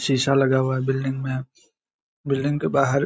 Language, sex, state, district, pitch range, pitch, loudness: Hindi, male, Bihar, Saharsa, 130-140 Hz, 135 Hz, -22 LUFS